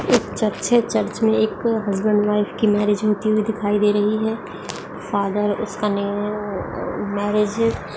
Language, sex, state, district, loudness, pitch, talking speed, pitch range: Hindi, female, Bihar, Bhagalpur, -21 LUFS, 210 Hz, 160 wpm, 205-220 Hz